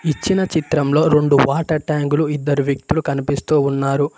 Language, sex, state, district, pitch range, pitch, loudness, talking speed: Telugu, male, Telangana, Mahabubabad, 140-155 Hz, 150 Hz, -17 LUFS, 130 wpm